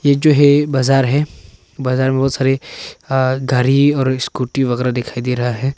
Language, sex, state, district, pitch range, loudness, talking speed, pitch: Hindi, male, Arunachal Pradesh, Papum Pare, 125-140 Hz, -16 LUFS, 175 wpm, 130 Hz